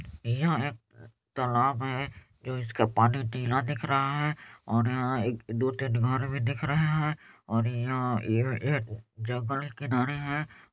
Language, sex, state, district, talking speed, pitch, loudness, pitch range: Hindi, male, Chhattisgarh, Balrampur, 140 wpm, 125 Hz, -29 LUFS, 115-140 Hz